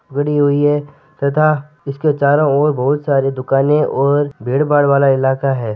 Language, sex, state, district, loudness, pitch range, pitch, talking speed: Marwari, male, Rajasthan, Nagaur, -15 LUFS, 135-150 Hz, 145 Hz, 165 wpm